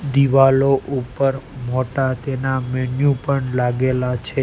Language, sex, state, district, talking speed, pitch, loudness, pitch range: Gujarati, male, Gujarat, Gandhinagar, 110 wpm, 135 Hz, -19 LUFS, 130-135 Hz